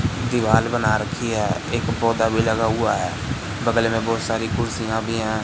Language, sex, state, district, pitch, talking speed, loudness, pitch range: Hindi, male, Madhya Pradesh, Katni, 115 Hz, 185 wpm, -21 LUFS, 110-115 Hz